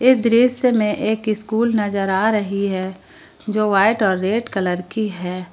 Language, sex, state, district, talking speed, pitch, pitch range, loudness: Hindi, female, Jharkhand, Palamu, 175 wpm, 210 Hz, 190-225 Hz, -19 LUFS